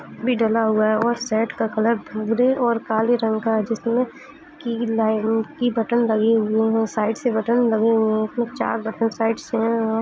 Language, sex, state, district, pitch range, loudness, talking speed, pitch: Hindi, female, Uttar Pradesh, Jalaun, 220-235 Hz, -21 LUFS, 210 wpm, 225 Hz